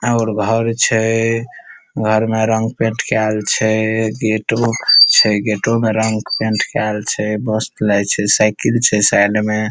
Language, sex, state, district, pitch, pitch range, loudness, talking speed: Maithili, male, Bihar, Saharsa, 110 Hz, 105-115 Hz, -15 LUFS, 135 wpm